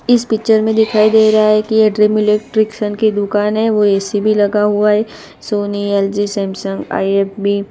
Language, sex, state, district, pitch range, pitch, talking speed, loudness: Hindi, female, Gujarat, Gandhinagar, 205-215 Hz, 210 Hz, 195 wpm, -14 LUFS